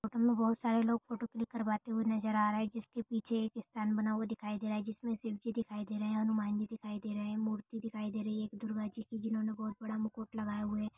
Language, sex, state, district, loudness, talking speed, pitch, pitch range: Hindi, female, Jharkhand, Jamtara, -37 LUFS, 290 wpm, 220 Hz, 215-225 Hz